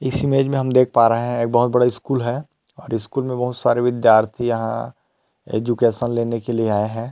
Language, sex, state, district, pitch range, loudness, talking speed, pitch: Hindi, male, Chhattisgarh, Rajnandgaon, 115-130 Hz, -19 LUFS, 210 wpm, 120 Hz